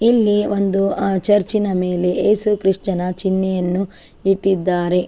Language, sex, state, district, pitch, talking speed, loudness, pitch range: Kannada, female, Karnataka, Chamarajanagar, 195 Hz, 120 wpm, -17 LUFS, 180-205 Hz